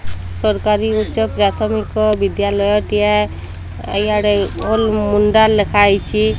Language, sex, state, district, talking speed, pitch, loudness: Odia, female, Odisha, Sambalpur, 95 wpm, 205 Hz, -15 LUFS